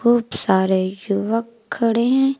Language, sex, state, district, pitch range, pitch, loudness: Hindi, female, Uttar Pradesh, Lucknow, 200-240 Hz, 230 Hz, -19 LUFS